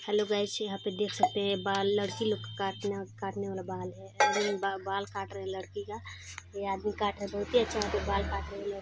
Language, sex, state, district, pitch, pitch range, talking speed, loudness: Hindi, female, Chhattisgarh, Balrampur, 200 Hz, 195-205 Hz, 225 wpm, -32 LUFS